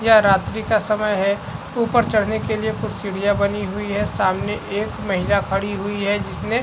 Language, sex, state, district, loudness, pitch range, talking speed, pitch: Hindi, male, Chhattisgarh, Rajnandgaon, -20 LUFS, 200-215 Hz, 200 wpm, 205 Hz